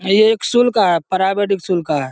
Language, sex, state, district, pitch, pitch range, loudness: Hindi, male, Bihar, Saharsa, 190 Hz, 175-210 Hz, -16 LUFS